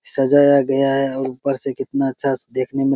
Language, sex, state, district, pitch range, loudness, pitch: Maithili, male, Bihar, Begusarai, 135-140 Hz, -18 LUFS, 135 Hz